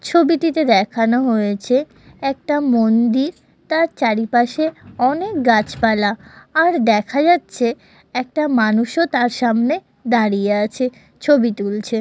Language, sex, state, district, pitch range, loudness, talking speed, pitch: Bengali, female, West Bengal, Kolkata, 225-300 Hz, -17 LUFS, 100 wpm, 245 Hz